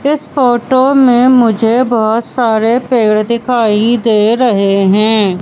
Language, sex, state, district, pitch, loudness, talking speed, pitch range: Hindi, female, Madhya Pradesh, Katni, 235 Hz, -11 LUFS, 120 wpm, 220-250 Hz